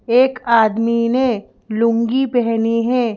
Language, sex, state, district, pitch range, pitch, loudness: Hindi, female, Madhya Pradesh, Bhopal, 230-250 Hz, 235 Hz, -17 LUFS